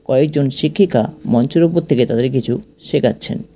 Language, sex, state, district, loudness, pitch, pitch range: Bengali, male, West Bengal, Cooch Behar, -16 LUFS, 140 Hz, 125-170 Hz